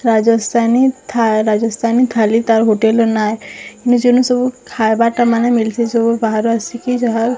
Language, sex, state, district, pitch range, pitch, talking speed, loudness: Odia, female, Odisha, Sambalpur, 220-240 Hz, 230 Hz, 160 wpm, -14 LUFS